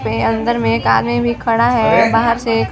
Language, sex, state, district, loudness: Hindi, female, Chhattisgarh, Sarguja, -14 LUFS